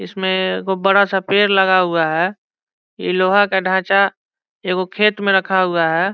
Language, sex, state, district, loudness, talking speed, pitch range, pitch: Hindi, male, Bihar, Saran, -16 LUFS, 185 wpm, 185-200 Hz, 190 Hz